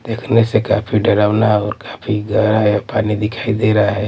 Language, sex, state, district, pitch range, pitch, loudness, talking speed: Hindi, male, Maharashtra, Mumbai Suburban, 105-110 Hz, 105 Hz, -16 LUFS, 190 wpm